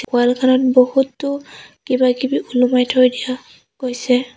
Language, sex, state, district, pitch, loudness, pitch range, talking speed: Assamese, female, Assam, Sonitpur, 255 Hz, -16 LUFS, 250-265 Hz, 95 wpm